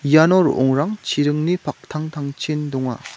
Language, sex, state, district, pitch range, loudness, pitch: Garo, male, Meghalaya, West Garo Hills, 140-160 Hz, -19 LUFS, 150 Hz